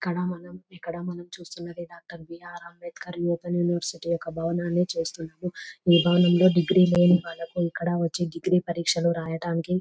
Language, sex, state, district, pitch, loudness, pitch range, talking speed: Telugu, female, Telangana, Nalgonda, 175 Hz, -25 LUFS, 170-175 Hz, 135 wpm